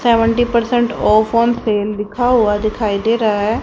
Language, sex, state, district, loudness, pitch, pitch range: Hindi, female, Haryana, Rohtak, -15 LUFS, 225 Hz, 210-235 Hz